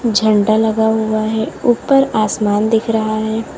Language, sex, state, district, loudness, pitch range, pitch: Hindi, female, Uttar Pradesh, Lalitpur, -15 LUFS, 215-225 Hz, 220 Hz